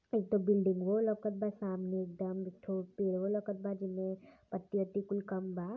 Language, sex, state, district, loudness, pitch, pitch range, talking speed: Hindi, male, Uttar Pradesh, Varanasi, -36 LUFS, 195 Hz, 185-205 Hz, 185 wpm